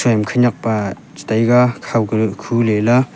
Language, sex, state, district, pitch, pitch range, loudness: Wancho, male, Arunachal Pradesh, Longding, 115 Hz, 110-120 Hz, -16 LUFS